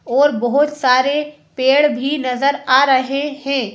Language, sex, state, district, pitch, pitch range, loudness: Hindi, female, Madhya Pradesh, Bhopal, 275 Hz, 260-290 Hz, -16 LUFS